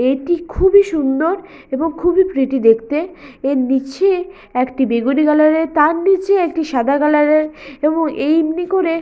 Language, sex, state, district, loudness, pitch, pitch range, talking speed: Bengali, female, West Bengal, Purulia, -16 LUFS, 305 Hz, 270-345 Hz, 155 wpm